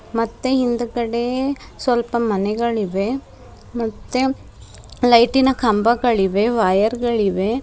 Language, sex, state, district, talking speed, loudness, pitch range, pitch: Kannada, female, Karnataka, Bidar, 95 wpm, -19 LUFS, 220-245 Hz, 235 Hz